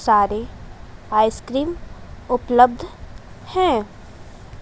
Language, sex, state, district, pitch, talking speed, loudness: Hindi, female, Chhattisgarh, Raipur, 220 Hz, 50 wpm, -19 LUFS